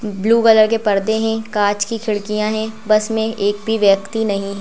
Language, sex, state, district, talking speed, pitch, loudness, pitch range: Hindi, female, Madhya Pradesh, Bhopal, 220 wpm, 215 Hz, -17 LUFS, 205-220 Hz